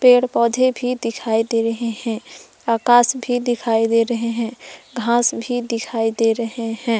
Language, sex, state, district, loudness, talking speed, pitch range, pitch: Hindi, female, Jharkhand, Palamu, -19 LUFS, 165 wpm, 225-245 Hz, 230 Hz